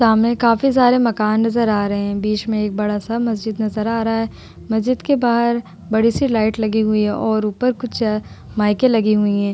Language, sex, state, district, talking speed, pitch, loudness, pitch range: Hindi, female, Uttar Pradesh, Etah, 215 wpm, 220 Hz, -18 LUFS, 215-235 Hz